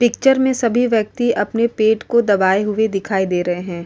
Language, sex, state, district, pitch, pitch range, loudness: Hindi, female, Uttar Pradesh, Varanasi, 220 Hz, 195-235 Hz, -17 LUFS